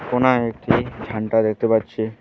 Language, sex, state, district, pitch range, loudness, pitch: Bengali, female, West Bengal, Alipurduar, 110-120 Hz, -20 LUFS, 115 Hz